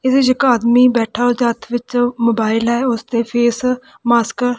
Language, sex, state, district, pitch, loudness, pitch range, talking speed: Punjabi, female, Punjab, Kapurthala, 240 Hz, -15 LUFS, 235-250 Hz, 210 wpm